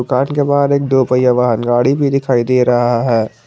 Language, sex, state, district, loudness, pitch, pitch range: Hindi, male, Jharkhand, Garhwa, -13 LUFS, 125 Hz, 120-140 Hz